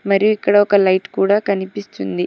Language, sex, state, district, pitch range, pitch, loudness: Telugu, female, Telangana, Hyderabad, 190-205 Hz, 200 Hz, -16 LUFS